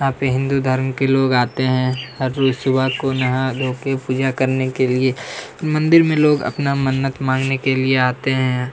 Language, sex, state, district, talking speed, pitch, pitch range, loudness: Hindi, male, Chhattisgarh, Kabirdham, 200 wpm, 130 Hz, 130-135 Hz, -18 LUFS